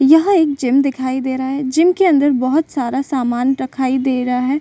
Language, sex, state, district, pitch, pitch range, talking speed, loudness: Hindi, female, Bihar, Saran, 270 Hz, 260-290 Hz, 220 wpm, -16 LUFS